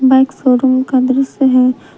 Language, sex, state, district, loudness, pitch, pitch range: Hindi, female, Jharkhand, Palamu, -12 LUFS, 260 Hz, 255-265 Hz